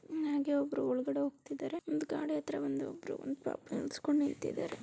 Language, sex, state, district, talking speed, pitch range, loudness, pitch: Kannada, female, Karnataka, Dakshina Kannada, 75 wpm, 280-310 Hz, -36 LUFS, 290 Hz